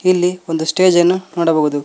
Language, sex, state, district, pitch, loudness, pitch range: Kannada, male, Karnataka, Koppal, 175 Hz, -15 LUFS, 160-185 Hz